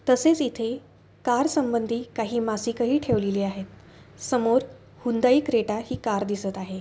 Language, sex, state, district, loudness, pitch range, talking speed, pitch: Marathi, female, Maharashtra, Pune, -25 LUFS, 215-250 Hz, 140 wpm, 235 Hz